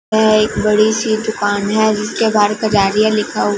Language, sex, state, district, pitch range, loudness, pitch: Hindi, female, Punjab, Fazilka, 205-220 Hz, -14 LUFS, 215 Hz